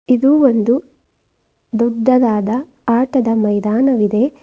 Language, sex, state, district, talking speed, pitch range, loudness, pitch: Kannada, female, Karnataka, Bidar, 70 wpm, 225-265 Hz, -15 LUFS, 240 Hz